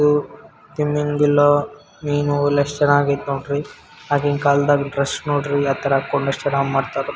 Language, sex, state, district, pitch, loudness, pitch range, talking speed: Kannada, male, Karnataka, Bellary, 145 Hz, -19 LUFS, 140-145 Hz, 125 wpm